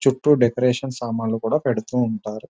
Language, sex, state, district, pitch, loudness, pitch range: Telugu, male, Telangana, Nalgonda, 120 Hz, -21 LUFS, 115-130 Hz